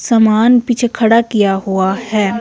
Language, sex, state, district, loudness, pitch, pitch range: Hindi, female, Himachal Pradesh, Shimla, -13 LUFS, 225 Hz, 200-235 Hz